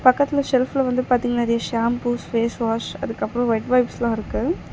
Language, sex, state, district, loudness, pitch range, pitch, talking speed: Tamil, female, Tamil Nadu, Chennai, -21 LUFS, 230-255 Hz, 240 Hz, 140 wpm